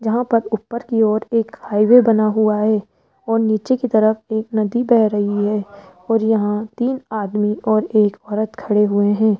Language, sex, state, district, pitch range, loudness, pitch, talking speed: Hindi, female, Rajasthan, Jaipur, 210-225 Hz, -18 LUFS, 215 Hz, 185 wpm